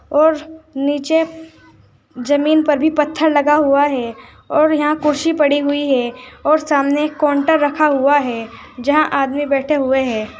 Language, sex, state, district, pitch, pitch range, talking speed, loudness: Hindi, female, Uttar Pradesh, Saharanpur, 290 Hz, 275-305 Hz, 150 wpm, -16 LUFS